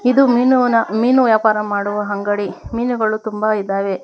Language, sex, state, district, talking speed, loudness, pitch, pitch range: Kannada, female, Karnataka, Bangalore, 135 wpm, -16 LUFS, 215 Hz, 205-240 Hz